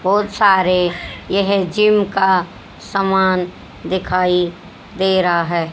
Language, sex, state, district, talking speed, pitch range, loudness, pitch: Hindi, female, Haryana, Jhajjar, 105 wpm, 180-195 Hz, -16 LUFS, 190 Hz